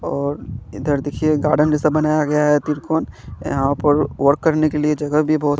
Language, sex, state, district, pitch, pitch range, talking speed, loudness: Hindi, male, Chandigarh, Chandigarh, 150 Hz, 145-155 Hz, 195 wpm, -18 LUFS